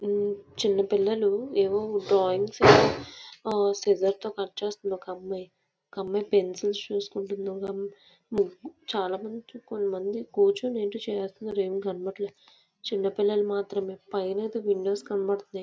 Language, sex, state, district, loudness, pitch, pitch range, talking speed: Telugu, female, Andhra Pradesh, Visakhapatnam, -27 LUFS, 200 Hz, 195-210 Hz, 100 wpm